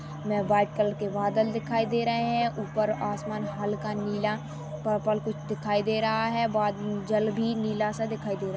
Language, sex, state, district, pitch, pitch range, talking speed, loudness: Hindi, female, Uttarakhand, Tehri Garhwal, 210 Hz, 205-220 Hz, 180 wpm, -28 LUFS